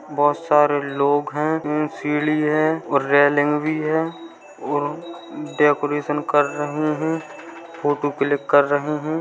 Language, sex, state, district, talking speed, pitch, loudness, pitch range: Hindi, male, Uttar Pradesh, Hamirpur, 130 wpm, 150 Hz, -20 LUFS, 145-155 Hz